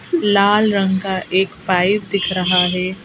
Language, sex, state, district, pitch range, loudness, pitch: Hindi, female, Madhya Pradesh, Bhopal, 185-200 Hz, -16 LUFS, 190 Hz